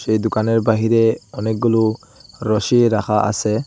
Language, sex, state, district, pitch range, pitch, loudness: Bengali, male, Assam, Hailakandi, 110-115 Hz, 110 Hz, -17 LUFS